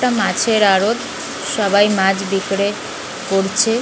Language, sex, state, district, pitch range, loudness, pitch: Bengali, female, West Bengal, North 24 Parganas, 195-225 Hz, -17 LUFS, 200 Hz